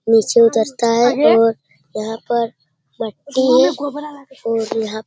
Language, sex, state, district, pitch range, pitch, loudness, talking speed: Hindi, male, Bihar, Lakhisarai, 220-260 Hz, 230 Hz, -16 LUFS, 130 wpm